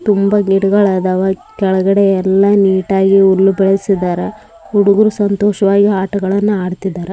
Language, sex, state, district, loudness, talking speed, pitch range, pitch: Kannada, male, Karnataka, Raichur, -13 LUFS, 110 wpm, 190-200 Hz, 195 Hz